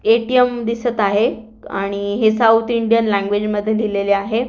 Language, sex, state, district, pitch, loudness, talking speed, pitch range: Marathi, female, Maharashtra, Aurangabad, 220 Hz, -17 LUFS, 145 wpm, 205-230 Hz